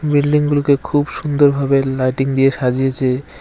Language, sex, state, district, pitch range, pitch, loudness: Bengali, male, West Bengal, Cooch Behar, 135-145 Hz, 140 Hz, -16 LUFS